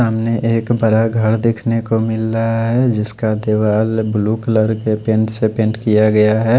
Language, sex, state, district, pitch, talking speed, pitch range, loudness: Hindi, male, Odisha, Khordha, 110 Hz, 180 wpm, 110-115 Hz, -16 LUFS